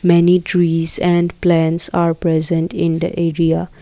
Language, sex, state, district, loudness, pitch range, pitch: English, female, Assam, Kamrup Metropolitan, -16 LUFS, 165-175 Hz, 170 Hz